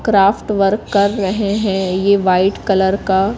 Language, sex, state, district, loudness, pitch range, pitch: Hindi, female, Madhya Pradesh, Katni, -15 LUFS, 190-205 Hz, 195 Hz